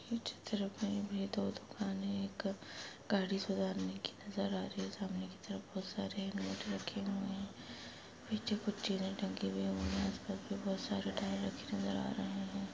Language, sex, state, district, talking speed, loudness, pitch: Hindi, female, Chhattisgarh, Sukma, 180 wpm, -40 LUFS, 190 Hz